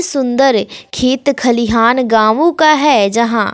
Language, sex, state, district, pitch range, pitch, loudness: Hindi, female, Bihar, West Champaran, 230-280 Hz, 255 Hz, -12 LUFS